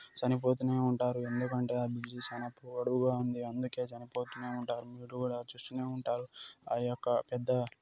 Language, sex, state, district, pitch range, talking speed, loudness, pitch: Telugu, male, Telangana, Nalgonda, 120-125 Hz, 155 wpm, -35 LUFS, 125 Hz